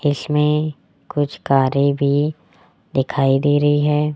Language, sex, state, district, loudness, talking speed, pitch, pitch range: Hindi, male, Rajasthan, Jaipur, -18 LUFS, 115 wpm, 145 Hz, 140-150 Hz